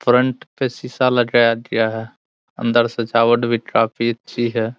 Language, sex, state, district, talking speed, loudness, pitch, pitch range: Hindi, male, Bihar, Araria, 150 wpm, -18 LUFS, 120 Hz, 115-125 Hz